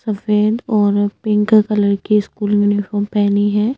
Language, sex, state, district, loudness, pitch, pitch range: Hindi, female, Chhattisgarh, Sukma, -16 LUFS, 210 Hz, 205-215 Hz